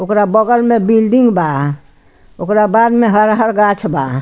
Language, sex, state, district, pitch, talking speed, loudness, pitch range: Bhojpuri, female, Bihar, Muzaffarpur, 210 Hz, 200 wpm, -12 LUFS, 185-225 Hz